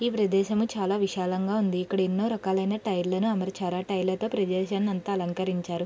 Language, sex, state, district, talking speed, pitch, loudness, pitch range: Telugu, female, Andhra Pradesh, Krishna, 175 wpm, 190 Hz, -27 LUFS, 185-205 Hz